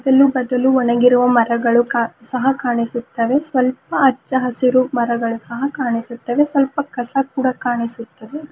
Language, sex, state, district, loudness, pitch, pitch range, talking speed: Kannada, female, Karnataka, Bidar, -17 LUFS, 250 Hz, 235-270 Hz, 120 wpm